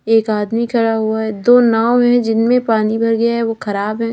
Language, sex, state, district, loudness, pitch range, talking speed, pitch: Hindi, female, Uttar Pradesh, Lalitpur, -15 LUFS, 220-235 Hz, 230 wpm, 225 Hz